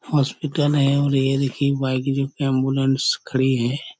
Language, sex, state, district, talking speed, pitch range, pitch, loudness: Hindi, male, Chhattisgarh, Korba, 135 wpm, 135-140 Hz, 135 Hz, -21 LUFS